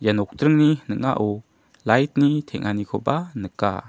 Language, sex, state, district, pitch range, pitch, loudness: Garo, male, Meghalaya, South Garo Hills, 105-145 Hz, 115 Hz, -22 LUFS